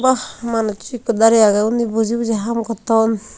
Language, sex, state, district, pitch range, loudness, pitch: Chakma, female, Tripura, Unakoti, 220-235 Hz, -17 LUFS, 225 Hz